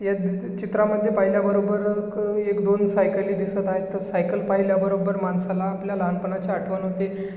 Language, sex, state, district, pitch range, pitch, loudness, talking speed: Marathi, male, Maharashtra, Chandrapur, 190-200 Hz, 195 Hz, -23 LUFS, 155 wpm